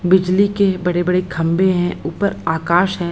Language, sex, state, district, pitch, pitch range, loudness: Hindi, female, Bihar, Lakhisarai, 180 Hz, 175-190 Hz, -17 LUFS